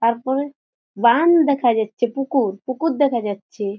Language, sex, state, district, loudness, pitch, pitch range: Bengali, female, West Bengal, Jhargram, -19 LUFS, 255 Hz, 220-285 Hz